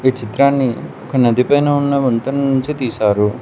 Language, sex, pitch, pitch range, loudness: Telugu, male, 130 Hz, 120-140 Hz, -16 LUFS